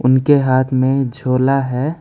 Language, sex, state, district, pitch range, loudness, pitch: Hindi, male, West Bengal, Alipurduar, 130-135 Hz, -15 LUFS, 130 Hz